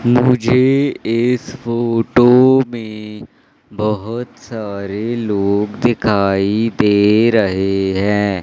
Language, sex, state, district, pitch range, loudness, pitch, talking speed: Hindi, male, Madhya Pradesh, Katni, 100-120 Hz, -15 LUFS, 110 Hz, 80 wpm